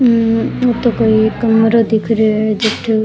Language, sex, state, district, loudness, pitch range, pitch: Rajasthani, female, Rajasthan, Churu, -13 LUFS, 220-230 Hz, 225 Hz